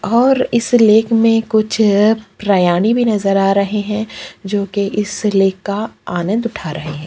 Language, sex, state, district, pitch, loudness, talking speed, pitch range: Hindi, female, Chhattisgarh, Kabirdham, 210 Hz, -15 LUFS, 180 wpm, 195-225 Hz